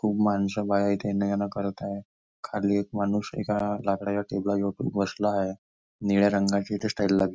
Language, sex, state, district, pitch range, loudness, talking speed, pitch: Marathi, male, Maharashtra, Nagpur, 100-105 Hz, -27 LUFS, 170 wpm, 100 Hz